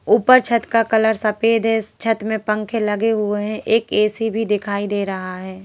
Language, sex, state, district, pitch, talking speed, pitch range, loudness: Hindi, female, Madhya Pradesh, Bhopal, 220 Hz, 200 wpm, 210-225 Hz, -18 LUFS